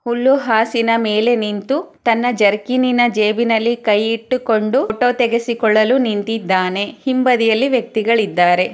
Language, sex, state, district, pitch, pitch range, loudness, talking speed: Kannada, female, Karnataka, Chamarajanagar, 230 Hz, 215-245 Hz, -16 LUFS, 105 wpm